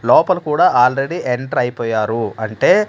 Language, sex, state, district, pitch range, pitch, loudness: Telugu, male, Andhra Pradesh, Manyam, 110-125 Hz, 120 Hz, -16 LUFS